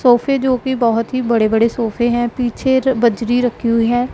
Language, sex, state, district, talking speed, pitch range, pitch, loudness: Hindi, female, Punjab, Pathankot, 190 wpm, 230-255 Hz, 240 Hz, -16 LUFS